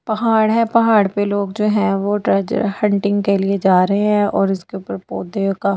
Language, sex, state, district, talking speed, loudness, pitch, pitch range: Hindi, female, Delhi, New Delhi, 210 wpm, -17 LUFS, 205 Hz, 195-210 Hz